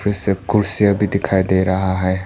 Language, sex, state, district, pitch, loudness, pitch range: Hindi, male, Arunachal Pradesh, Papum Pare, 95 Hz, -17 LUFS, 95-100 Hz